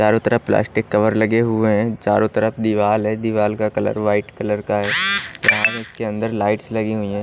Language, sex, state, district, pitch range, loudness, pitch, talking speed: Hindi, male, Odisha, Malkangiri, 105-110 Hz, -18 LUFS, 110 Hz, 205 wpm